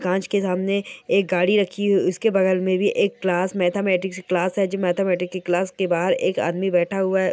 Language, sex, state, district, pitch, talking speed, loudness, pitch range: Hindi, female, Rajasthan, Nagaur, 185 Hz, 235 wpm, -21 LUFS, 180-195 Hz